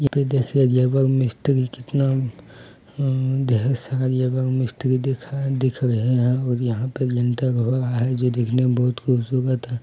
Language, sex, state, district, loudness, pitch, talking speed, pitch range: Hindi, male, Bihar, Muzaffarpur, -21 LUFS, 130 Hz, 165 wpm, 125-130 Hz